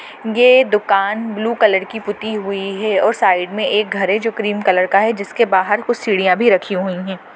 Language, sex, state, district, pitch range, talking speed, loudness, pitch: Hindi, female, Rajasthan, Churu, 195-225 Hz, 220 wpm, -16 LUFS, 205 Hz